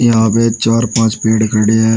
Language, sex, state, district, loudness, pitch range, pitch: Hindi, male, Uttar Pradesh, Shamli, -13 LUFS, 110-115 Hz, 110 Hz